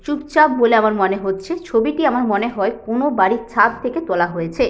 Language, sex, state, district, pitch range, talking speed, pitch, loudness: Bengali, female, West Bengal, Jhargram, 195-285 Hz, 180 wpm, 230 Hz, -17 LUFS